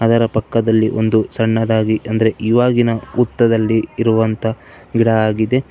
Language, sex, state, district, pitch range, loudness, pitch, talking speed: Kannada, male, Karnataka, Bangalore, 110-115 Hz, -16 LUFS, 110 Hz, 105 wpm